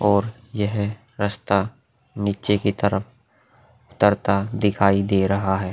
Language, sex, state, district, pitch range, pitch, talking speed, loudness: Hindi, male, Uttar Pradesh, Hamirpur, 100-115 Hz, 105 Hz, 115 wpm, -22 LUFS